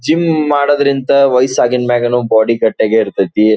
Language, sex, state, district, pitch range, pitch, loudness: Kannada, male, Karnataka, Dharwad, 110-145 Hz, 125 Hz, -12 LUFS